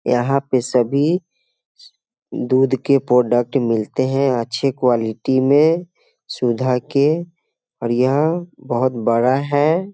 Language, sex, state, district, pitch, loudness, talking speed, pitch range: Hindi, male, Bihar, Muzaffarpur, 130 Hz, -18 LUFS, 110 wpm, 125-150 Hz